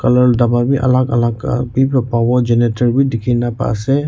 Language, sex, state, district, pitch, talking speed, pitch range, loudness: Nagamese, male, Nagaland, Kohima, 125 Hz, 220 wpm, 120-130 Hz, -15 LUFS